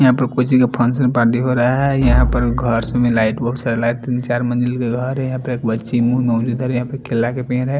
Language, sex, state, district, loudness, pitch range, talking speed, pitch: Hindi, male, Punjab, Fazilka, -17 LUFS, 120-130 Hz, 270 wpm, 125 Hz